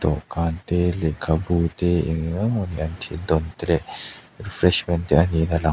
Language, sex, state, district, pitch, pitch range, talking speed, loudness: Mizo, male, Mizoram, Aizawl, 85 Hz, 80-90 Hz, 190 wpm, -22 LUFS